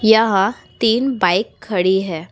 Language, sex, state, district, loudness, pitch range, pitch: Hindi, female, Uttar Pradesh, Etah, -17 LUFS, 180-225 Hz, 195 Hz